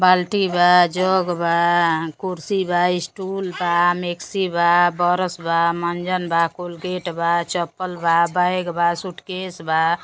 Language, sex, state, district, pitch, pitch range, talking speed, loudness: Bhojpuri, female, Uttar Pradesh, Deoria, 175 Hz, 170-185 Hz, 130 wpm, -20 LUFS